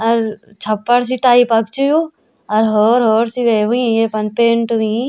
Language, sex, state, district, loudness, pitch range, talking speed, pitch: Garhwali, female, Uttarakhand, Tehri Garhwal, -14 LUFS, 220-245 Hz, 165 wpm, 230 Hz